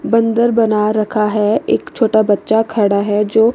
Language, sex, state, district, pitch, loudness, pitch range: Hindi, female, Chandigarh, Chandigarh, 215 Hz, -14 LUFS, 210-230 Hz